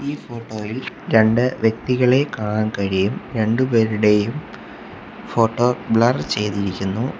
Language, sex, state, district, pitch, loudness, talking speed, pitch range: Malayalam, male, Kerala, Kollam, 115 Hz, -19 LUFS, 85 wpm, 105-125 Hz